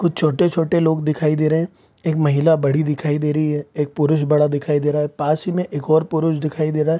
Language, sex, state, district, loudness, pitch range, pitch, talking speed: Hindi, male, Bihar, Supaul, -19 LUFS, 150-160 Hz, 155 Hz, 265 wpm